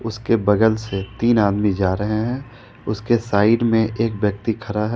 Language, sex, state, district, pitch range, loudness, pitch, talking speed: Hindi, male, Jharkhand, Ranchi, 105-115 Hz, -19 LUFS, 110 Hz, 180 wpm